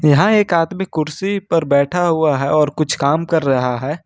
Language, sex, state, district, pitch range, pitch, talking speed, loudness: Hindi, male, Jharkhand, Ranchi, 145-170 Hz, 155 Hz, 205 wpm, -16 LUFS